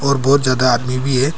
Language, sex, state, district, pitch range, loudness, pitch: Hindi, male, Arunachal Pradesh, Papum Pare, 130-140 Hz, -15 LUFS, 130 Hz